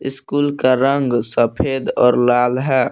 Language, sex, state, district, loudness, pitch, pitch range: Hindi, male, Jharkhand, Palamu, -16 LUFS, 130 Hz, 125-135 Hz